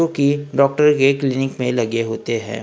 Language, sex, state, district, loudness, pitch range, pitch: Hindi, male, Maharashtra, Gondia, -18 LUFS, 115-140 Hz, 135 Hz